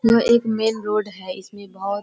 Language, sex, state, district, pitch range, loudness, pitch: Hindi, female, Bihar, Kishanganj, 200-225 Hz, -20 LUFS, 210 Hz